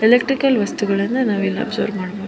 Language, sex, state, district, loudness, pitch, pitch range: Kannada, female, Karnataka, Shimoga, -19 LUFS, 210 Hz, 200-250 Hz